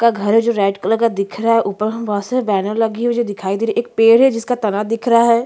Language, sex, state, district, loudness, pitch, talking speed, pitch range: Hindi, female, Chhattisgarh, Jashpur, -16 LUFS, 225 Hz, 330 wpm, 205-235 Hz